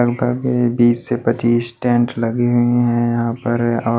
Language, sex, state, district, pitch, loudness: Hindi, male, Maharashtra, Washim, 120 Hz, -17 LUFS